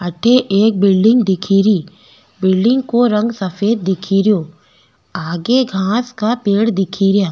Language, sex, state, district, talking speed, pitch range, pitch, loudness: Rajasthani, female, Rajasthan, Nagaur, 125 wpm, 185-225 Hz, 200 Hz, -15 LUFS